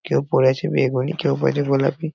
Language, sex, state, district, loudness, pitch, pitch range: Bengali, male, West Bengal, North 24 Parganas, -20 LUFS, 135 Hz, 130-155 Hz